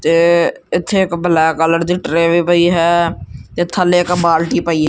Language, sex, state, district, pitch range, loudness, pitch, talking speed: Punjabi, male, Punjab, Kapurthala, 165-175 Hz, -14 LUFS, 170 Hz, 185 wpm